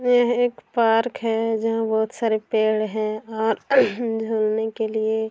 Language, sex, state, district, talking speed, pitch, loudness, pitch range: Hindi, male, Bihar, Sitamarhi, 160 wpm, 225 Hz, -22 LUFS, 220-230 Hz